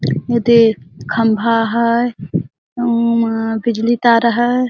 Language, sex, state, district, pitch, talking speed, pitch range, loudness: Surgujia, female, Chhattisgarh, Sarguja, 230 Hz, 100 wpm, 225-235 Hz, -15 LUFS